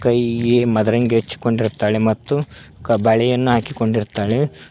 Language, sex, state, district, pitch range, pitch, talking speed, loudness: Kannada, male, Karnataka, Koppal, 110-120 Hz, 115 Hz, 100 wpm, -18 LUFS